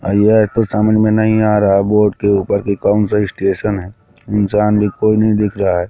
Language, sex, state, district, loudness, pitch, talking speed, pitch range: Hindi, male, Madhya Pradesh, Katni, -14 LUFS, 105 Hz, 235 wpm, 100-110 Hz